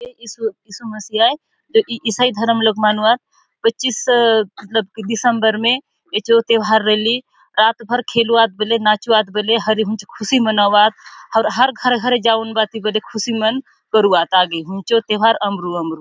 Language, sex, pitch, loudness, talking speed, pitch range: Halbi, female, 225 Hz, -16 LUFS, 165 wpm, 215-240 Hz